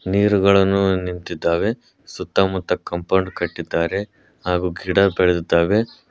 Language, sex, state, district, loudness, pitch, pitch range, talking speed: Kannada, male, Karnataka, Koppal, -19 LUFS, 95 Hz, 90-100 Hz, 100 wpm